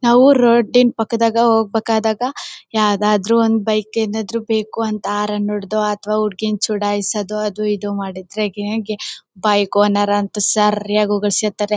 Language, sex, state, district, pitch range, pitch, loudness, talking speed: Kannada, female, Karnataka, Bellary, 205-225 Hz, 210 Hz, -17 LUFS, 130 wpm